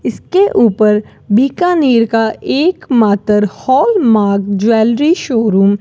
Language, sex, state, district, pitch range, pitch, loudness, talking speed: Hindi, female, Rajasthan, Bikaner, 210-275 Hz, 225 Hz, -12 LUFS, 95 wpm